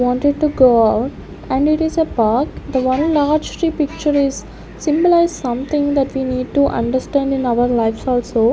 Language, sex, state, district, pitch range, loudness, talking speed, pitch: English, female, Chandigarh, Chandigarh, 245-300 Hz, -17 LUFS, 185 wpm, 270 Hz